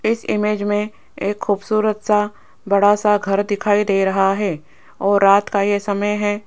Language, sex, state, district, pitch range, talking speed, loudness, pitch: Hindi, female, Rajasthan, Jaipur, 200-210 Hz, 175 wpm, -18 LUFS, 205 Hz